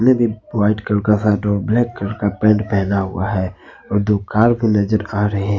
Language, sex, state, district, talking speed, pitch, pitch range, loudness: Hindi, male, Jharkhand, Ranchi, 215 wpm, 105 Hz, 100-110 Hz, -18 LUFS